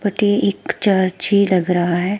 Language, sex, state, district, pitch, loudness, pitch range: Hindi, female, Himachal Pradesh, Shimla, 200 Hz, -17 LUFS, 180-205 Hz